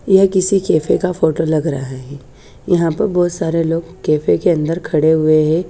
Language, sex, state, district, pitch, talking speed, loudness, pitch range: Hindi, female, Haryana, Charkhi Dadri, 165 Hz, 210 wpm, -15 LUFS, 155-180 Hz